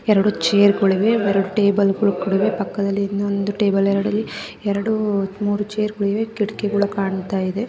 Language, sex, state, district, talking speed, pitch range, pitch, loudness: Kannada, female, Karnataka, Mysore, 135 wpm, 195-210 Hz, 200 Hz, -19 LUFS